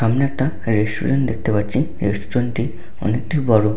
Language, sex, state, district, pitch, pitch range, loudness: Bengali, male, West Bengal, Paschim Medinipur, 115 Hz, 105-130 Hz, -20 LUFS